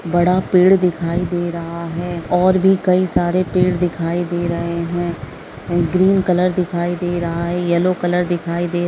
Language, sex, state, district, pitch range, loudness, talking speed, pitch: Hindi, female, Bihar, Bhagalpur, 170-180 Hz, -17 LUFS, 175 wpm, 175 Hz